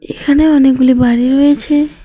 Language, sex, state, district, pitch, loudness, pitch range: Bengali, female, West Bengal, Alipurduar, 280 Hz, -10 LUFS, 255-295 Hz